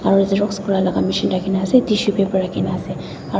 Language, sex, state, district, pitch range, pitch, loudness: Nagamese, female, Nagaland, Dimapur, 190-205 Hz, 195 Hz, -19 LUFS